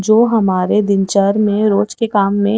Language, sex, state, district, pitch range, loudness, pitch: Hindi, female, Chhattisgarh, Raipur, 200-215 Hz, -14 LUFS, 205 Hz